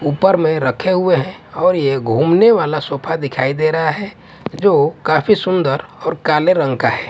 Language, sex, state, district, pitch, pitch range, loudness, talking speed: Hindi, male, Punjab, Kapurthala, 160 Hz, 145-185 Hz, -15 LUFS, 185 wpm